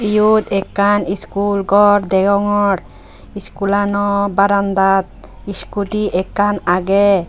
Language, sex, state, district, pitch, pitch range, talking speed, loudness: Chakma, female, Tripura, Unakoti, 200 Hz, 195-205 Hz, 100 wpm, -15 LUFS